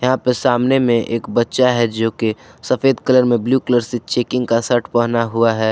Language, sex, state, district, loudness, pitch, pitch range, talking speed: Hindi, male, Jharkhand, Garhwa, -17 LUFS, 120 Hz, 115-125 Hz, 210 wpm